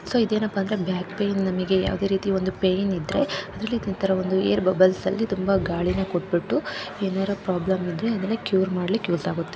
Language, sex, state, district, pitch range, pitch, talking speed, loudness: Kannada, female, Karnataka, Chamarajanagar, 185-200 Hz, 190 Hz, 165 wpm, -24 LUFS